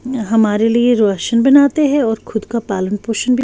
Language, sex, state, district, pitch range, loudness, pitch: Hindi, female, Bihar, West Champaran, 220-255 Hz, -14 LUFS, 230 Hz